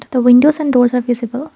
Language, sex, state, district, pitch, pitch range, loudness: English, female, Assam, Kamrup Metropolitan, 250 Hz, 245-285 Hz, -13 LUFS